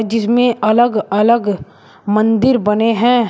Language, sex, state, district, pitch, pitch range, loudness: Hindi, male, Uttar Pradesh, Shamli, 225 Hz, 210-235 Hz, -14 LUFS